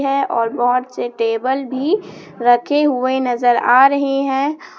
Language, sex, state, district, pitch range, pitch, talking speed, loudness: Hindi, female, Jharkhand, Palamu, 245-275 Hz, 260 Hz, 150 wpm, -16 LUFS